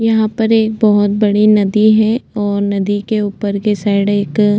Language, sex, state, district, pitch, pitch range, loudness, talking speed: Hindi, female, Chhattisgarh, Jashpur, 210 Hz, 205-215 Hz, -13 LUFS, 195 wpm